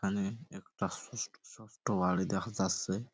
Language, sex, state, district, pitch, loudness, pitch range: Bengali, male, West Bengal, Purulia, 95 Hz, -35 LUFS, 95-100 Hz